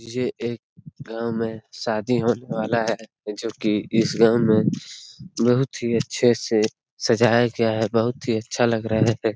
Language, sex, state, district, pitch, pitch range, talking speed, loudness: Hindi, male, Bihar, Darbhanga, 115 Hz, 110-120 Hz, 165 wpm, -22 LUFS